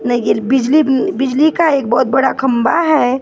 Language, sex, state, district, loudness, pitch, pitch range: Hindi, female, Maharashtra, Gondia, -13 LUFS, 265 Hz, 245-295 Hz